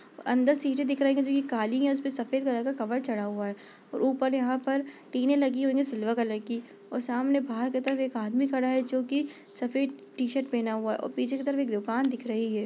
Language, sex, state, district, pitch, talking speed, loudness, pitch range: Hindi, female, Chhattisgarh, Bastar, 260 Hz, 240 wpm, -29 LUFS, 235-275 Hz